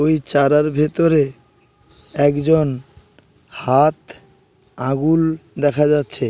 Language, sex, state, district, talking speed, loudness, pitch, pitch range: Bengali, male, West Bengal, Paschim Medinipur, 75 wpm, -17 LUFS, 145 Hz, 135-155 Hz